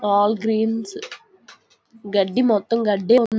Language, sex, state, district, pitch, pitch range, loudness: Telugu, female, Andhra Pradesh, Visakhapatnam, 220 Hz, 205-225 Hz, -20 LUFS